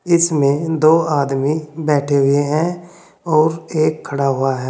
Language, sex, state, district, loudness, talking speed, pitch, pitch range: Hindi, male, Uttar Pradesh, Saharanpur, -16 LUFS, 140 wpm, 155 Hz, 140-165 Hz